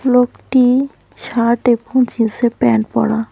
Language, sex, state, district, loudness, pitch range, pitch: Bengali, female, West Bengal, Cooch Behar, -15 LUFS, 225-250 Hz, 240 Hz